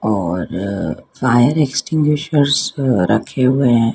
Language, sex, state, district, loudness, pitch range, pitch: Hindi, female, Madhya Pradesh, Dhar, -16 LUFS, 110-140 Hz, 130 Hz